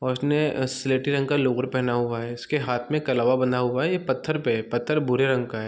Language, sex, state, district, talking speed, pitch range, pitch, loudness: Hindi, male, Chhattisgarh, Bilaspur, 275 wpm, 125-145 Hz, 130 Hz, -24 LUFS